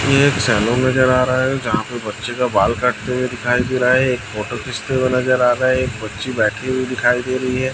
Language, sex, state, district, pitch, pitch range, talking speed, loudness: Hindi, male, Chhattisgarh, Raipur, 125 Hz, 120-130 Hz, 255 wpm, -17 LUFS